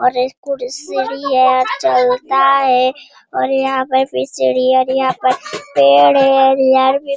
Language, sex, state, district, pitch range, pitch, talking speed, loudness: Hindi, female, Bihar, Jamui, 250-270 Hz, 260 Hz, 175 wpm, -14 LUFS